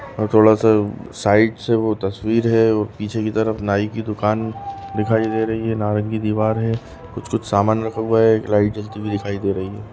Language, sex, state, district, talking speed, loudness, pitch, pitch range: Hindi, female, Goa, North and South Goa, 210 wpm, -19 LUFS, 110 Hz, 105-110 Hz